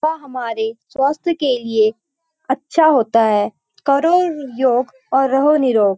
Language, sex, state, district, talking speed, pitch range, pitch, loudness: Hindi, female, Uttarakhand, Uttarkashi, 140 wpm, 230-305 Hz, 270 Hz, -17 LUFS